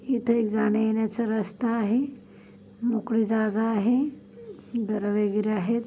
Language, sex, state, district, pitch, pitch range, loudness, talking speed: Marathi, female, Maharashtra, Chandrapur, 225 Hz, 215-235 Hz, -26 LUFS, 115 wpm